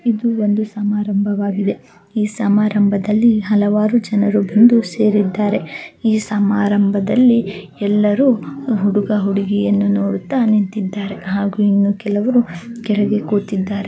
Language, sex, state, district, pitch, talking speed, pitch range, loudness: Kannada, female, Karnataka, Dakshina Kannada, 205 Hz, 75 wpm, 200-215 Hz, -16 LUFS